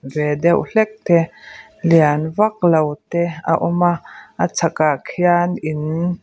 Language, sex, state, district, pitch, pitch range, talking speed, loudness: Mizo, female, Mizoram, Aizawl, 170 Hz, 155-175 Hz, 145 wpm, -18 LUFS